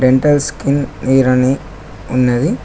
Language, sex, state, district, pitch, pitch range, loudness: Telugu, male, Telangana, Mahabubabad, 135 Hz, 125-145 Hz, -14 LUFS